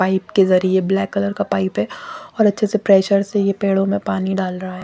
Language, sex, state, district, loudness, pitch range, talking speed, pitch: Hindi, female, Chandigarh, Chandigarh, -18 LUFS, 190-200 Hz, 260 wpm, 195 Hz